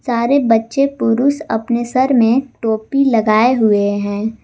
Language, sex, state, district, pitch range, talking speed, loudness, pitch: Hindi, female, Jharkhand, Garhwa, 220-265 Hz, 135 wpm, -15 LUFS, 235 Hz